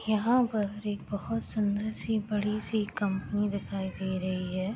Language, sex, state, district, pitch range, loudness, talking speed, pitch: Hindi, female, Bihar, East Champaran, 195-215 Hz, -31 LUFS, 165 wpm, 205 Hz